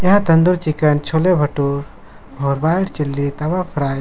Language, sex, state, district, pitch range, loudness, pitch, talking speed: Hindi, male, Jharkhand, Sahebganj, 140-175 Hz, -17 LUFS, 150 Hz, 165 wpm